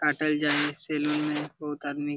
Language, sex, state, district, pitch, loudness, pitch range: Hindi, male, Bihar, Jamui, 150 Hz, -28 LUFS, 145-150 Hz